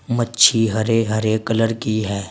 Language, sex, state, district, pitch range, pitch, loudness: Hindi, male, Uttar Pradesh, Saharanpur, 110-115 Hz, 115 Hz, -18 LUFS